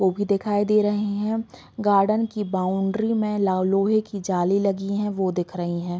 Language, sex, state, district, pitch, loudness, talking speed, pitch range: Hindi, female, Chhattisgarh, Bilaspur, 200 Hz, -23 LUFS, 200 wpm, 190-210 Hz